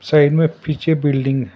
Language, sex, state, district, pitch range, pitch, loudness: Hindi, male, Karnataka, Bangalore, 135-160 Hz, 150 Hz, -17 LUFS